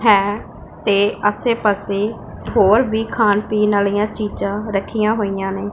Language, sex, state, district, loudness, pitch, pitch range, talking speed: Punjabi, female, Punjab, Pathankot, -18 LUFS, 210 Hz, 200-215 Hz, 135 wpm